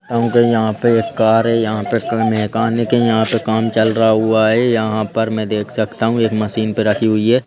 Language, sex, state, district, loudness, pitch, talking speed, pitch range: Hindi, male, Madhya Pradesh, Bhopal, -15 LUFS, 110 Hz, 235 wpm, 110-115 Hz